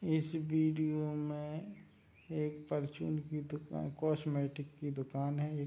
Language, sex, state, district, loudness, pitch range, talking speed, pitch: Hindi, male, Bihar, Sitamarhi, -38 LUFS, 145-155 Hz, 135 wpm, 150 Hz